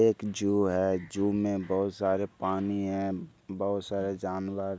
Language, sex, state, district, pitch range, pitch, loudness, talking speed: Hindi, male, Bihar, Lakhisarai, 95-100 Hz, 95 Hz, -30 LUFS, 165 wpm